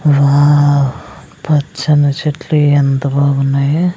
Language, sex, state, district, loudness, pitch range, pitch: Telugu, female, Andhra Pradesh, Sri Satya Sai, -12 LUFS, 140-150 Hz, 145 Hz